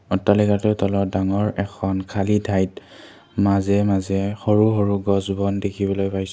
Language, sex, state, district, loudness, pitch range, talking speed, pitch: Assamese, male, Assam, Kamrup Metropolitan, -21 LUFS, 95-105 Hz, 135 wpm, 100 Hz